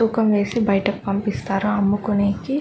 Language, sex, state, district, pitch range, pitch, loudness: Telugu, female, Andhra Pradesh, Chittoor, 200-215 Hz, 205 Hz, -20 LUFS